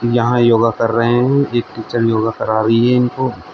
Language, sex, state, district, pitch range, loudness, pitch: Hindi, male, Uttar Pradesh, Shamli, 115-120 Hz, -15 LUFS, 120 Hz